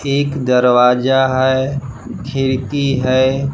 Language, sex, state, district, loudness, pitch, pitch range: Hindi, male, Jharkhand, Palamu, -15 LUFS, 130 Hz, 130-140 Hz